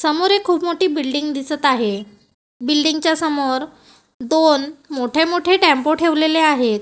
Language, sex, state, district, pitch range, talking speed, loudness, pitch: Marathi, female, Maharashtra, Gondia, 275-320 Hz, 140 wpm, -17 LUFS, 305 Hz